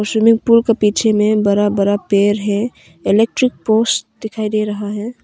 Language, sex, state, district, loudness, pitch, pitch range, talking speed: Hindi, female, Arunachal Pradesh, Longding, -15 LUFS, 215 Hz, 205-225 Hz, 170 wpm